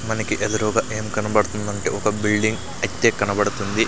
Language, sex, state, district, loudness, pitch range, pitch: Telugu, male, Andhra Pradesh, Sri Satya Sai, -21 LUFS, 105-110 Hz, 105 Hz